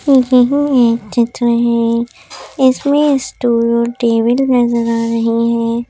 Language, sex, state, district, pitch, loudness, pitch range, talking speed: Hindi, female, Madhya Pradesh, Bhopal, 235 Hz, -13 LUFS, 230-255 Hz, 120 wpm